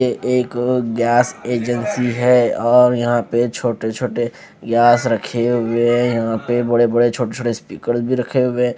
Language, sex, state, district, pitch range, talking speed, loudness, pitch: Hindi, female, Punjab, Fazilka, 120-125 Hz, 165 wpm, -17 LUFS, 120 Hz